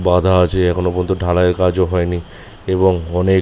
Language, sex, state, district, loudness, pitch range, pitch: Bengali, male, West Bengal, Malda, -16 LUFS, 90-95 Hz, 90 Hz